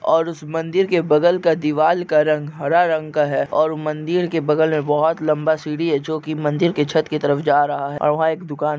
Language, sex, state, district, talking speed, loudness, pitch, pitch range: Hindi, male, Maharashtra, Nagpur, 250 wpm, -19 LUFS, 155 Hz, 150-160 Hz